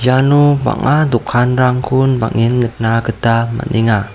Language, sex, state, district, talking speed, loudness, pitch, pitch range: Garo, male, Meghalaya, South Garo Hills, 100 wpm, -14 LUFS, 120 Hz, 115-130 Hz